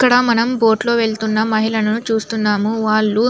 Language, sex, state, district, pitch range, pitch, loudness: Telugu, female, Andhra Pradesh, Anantapur, 215-230 Hz, 220 Hz, -16 LUFS